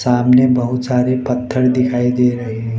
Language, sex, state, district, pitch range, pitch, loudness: Hindi, male, Arunachal Pradesh, Lower Dibang Valley, 120-125 Hz, 125 Hz, -15 LUFS